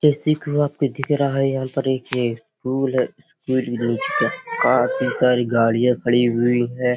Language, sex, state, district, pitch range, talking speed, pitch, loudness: Hindi, male, Uttar Pradesh, Hamirpur, 120-140 Hz, 130 wpm, 130 Hz, -20 LUFS